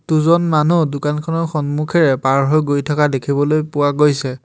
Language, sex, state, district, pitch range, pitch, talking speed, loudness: Assamese, male, Assam, Hailakandi, 145-155 Hz, 150 Hz, 150 wpm, -16 LUFS